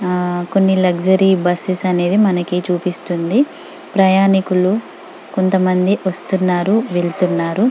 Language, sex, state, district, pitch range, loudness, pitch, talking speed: Telugu, female, Telangana, Karimnagar, 180-195 Hz, -16 LUFS, 185 Hz, 95 wpm